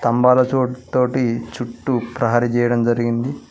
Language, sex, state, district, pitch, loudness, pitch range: Telugu, male, Telangana, Mahabubabad, 120 Hz, -18 LUFS, 120-125 Hz